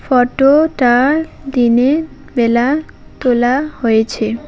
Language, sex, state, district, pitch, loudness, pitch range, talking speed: Bengali, female, West Bengal, Alipurduar, 255 Hz, -14 LUFS, 240-285 Hz, 65 wpm